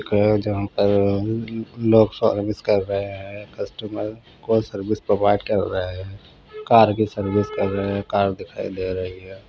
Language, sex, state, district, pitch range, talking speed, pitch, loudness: Hindi, male, Bihar, Patna, 100-110 Hz, 150 wpm, 100 Hz, -21 LUFS